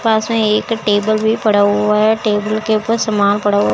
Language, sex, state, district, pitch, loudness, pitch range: Hindi, female, Chandigarh, Chandigarh, 215 Hz, -15 LUFS, 205-220 Hz